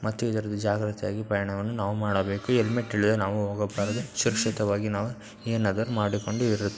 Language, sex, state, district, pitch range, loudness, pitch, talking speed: Kannada, male, Karnataka, Dakshina Kannada, 100-110 Hz, -27 LUFS, 105 Hz, 105 wpm